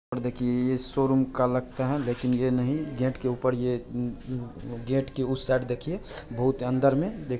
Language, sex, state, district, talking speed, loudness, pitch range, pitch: Hindi, male, Bihar, Purnia, 185 wpm, -28 LUFS, 125-135 Hz, 130 Hz